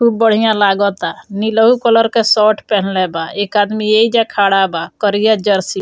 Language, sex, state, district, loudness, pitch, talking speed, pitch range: Bhojpuri, female, Bihar, Muzaffarpur, -13 LUFS, 210 Hz, 175 wpm, 200-225 Hz